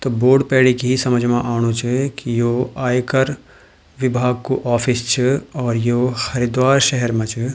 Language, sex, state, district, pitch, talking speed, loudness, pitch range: Garhwali, male, Uttarakhand, Tehri Garhwal, 125 Hz, 165 wpm, -17 LUFS, 120-130 Hz